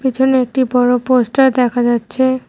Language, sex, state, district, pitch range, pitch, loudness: Bengali, female, West Bengal, Cooch Behar, 245-260 Hz, 255 Hz, -14 LUFS